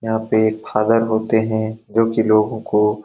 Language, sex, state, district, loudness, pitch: Hindi, male, Bihar, Saran, -18 LUFS, 110 Hz